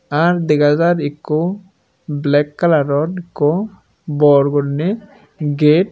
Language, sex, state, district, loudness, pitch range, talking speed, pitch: Chakma, male, Tripura, Unakoti, -16 LUFS, 145-175 Hz, 90 wpm, 150 Hz